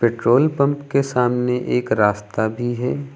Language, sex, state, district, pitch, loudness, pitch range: Hindi, male, Uttar Pradesh, Lucknow, 120 Hz, -19 LUFS, 105-125 Hz